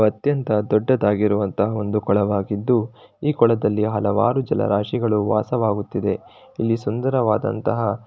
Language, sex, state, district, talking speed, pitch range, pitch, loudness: Kannada, male, Karnataka, Shimoga, 105 wpm, 105-120 Hz, 110 Hz, -21 LUFS